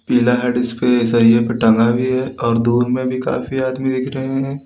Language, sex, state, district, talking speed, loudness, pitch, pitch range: Hindi, male, Uttar Pradesh, Lalitpur, 195 wpm, -16 LUFS, 125 Hz, 120-130 Hz